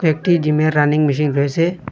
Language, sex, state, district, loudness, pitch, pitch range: Bengali, male, Assam, Hailakandi, -16 LUFS, 150 Hz, 145-165 Hz